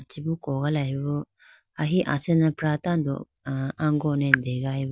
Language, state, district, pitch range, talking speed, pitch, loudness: Idu Mishmi, Arunachal Pradesh, Lower Dibang Valley, 135-155 Hz, 95 wpm, 145 Hz, -25 LUFS